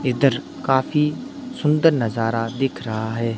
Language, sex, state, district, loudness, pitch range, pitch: Hindi, male, Himachal Pradesh, Shimla, -21 LUFS, 115-150 Hz, 135 Hz